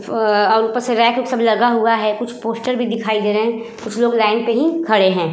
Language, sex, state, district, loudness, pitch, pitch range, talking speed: Hindi, female, Uttar Pradesh, Budaun, -17 LUFS, 230 Hz, 220-240 Hz, 260 wpm